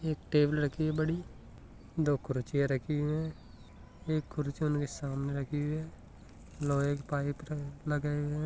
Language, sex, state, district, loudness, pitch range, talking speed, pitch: Hindi, male, Rajasthan, Nagaur, -33 LUFS, 140-155 Hz, 125 wpm, 145 Hz